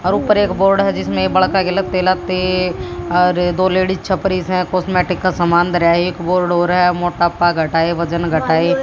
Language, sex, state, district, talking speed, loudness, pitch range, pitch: Hindi, female, Haryana, Jhajjar, 175 wpm, -16 LUFS, 175-185 Hz, 180 Hz